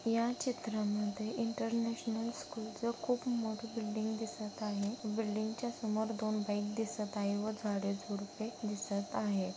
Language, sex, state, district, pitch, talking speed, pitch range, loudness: Marathi, female, Maharashtra, Pune, 220 Hz, 150 wpm, 210-230 Hz, -38 LUFS